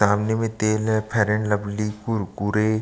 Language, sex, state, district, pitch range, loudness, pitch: Hindi, male, Chhattisgarh, Sukma, 105-110 Hz, -23 LUFS, 105 Hz